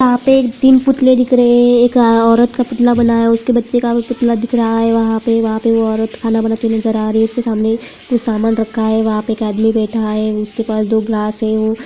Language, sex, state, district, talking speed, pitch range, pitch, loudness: Hindi, female, Bihar, Jamui, 265 wpm, 220-240 Hz, 230 Hz, -13 LUFS